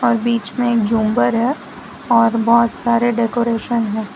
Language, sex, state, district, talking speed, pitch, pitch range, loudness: Hindi, female, Gujarat, Valsad, 160 wpm, 235 Hz, 225-240 Hz, -16 LUFS